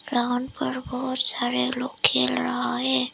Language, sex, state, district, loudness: Hindi, female, Arunachal Pradesh, Lower Dibang Valley, -24 LUFS